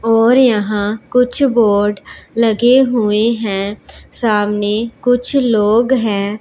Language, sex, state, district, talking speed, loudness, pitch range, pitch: Hindi, female, Punjab, Pathankot, 105 wpm, -14 LUFS, 210-245 Hz, 225 Hz